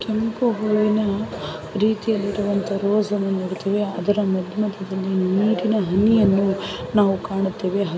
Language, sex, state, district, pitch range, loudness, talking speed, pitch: Kannada, female, Karnataka, Raichur, 195-210 Hz, -21 LUFS, 105 wpm, 200 Hz